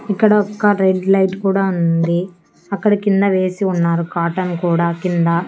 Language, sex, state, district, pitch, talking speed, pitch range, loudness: Telugu, female, Andhra Pradesh, Annamaya, 185 Hz, 140 wpm, 170-200 Hz, -16 LUFS